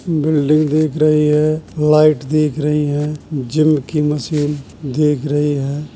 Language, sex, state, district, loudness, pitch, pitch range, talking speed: Hindi, male, Uttar Pradesh, Jalaun, -16 LUFS, 150 Hz, 145-155 Hz, 140 wpm